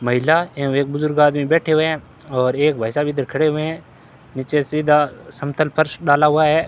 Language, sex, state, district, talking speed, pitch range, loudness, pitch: Hindi, male, Rajasthan, Bikaner, 215 wpm, 140-155 Hz, -18 LUFS, 150 Hz